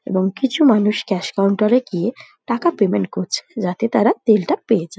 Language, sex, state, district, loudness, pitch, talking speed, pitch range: Bengali, female, West Bengal, Dakshin Dinajpur, -18 LUFS, 215 Hz, 190 wpm, 195-240 Hz